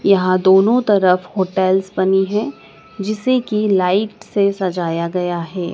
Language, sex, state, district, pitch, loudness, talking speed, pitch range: Hindi, female, Madhya Pradesh, Dhar, 195 Hz, -17 LUFS, 135 wpm, 185-210 Hz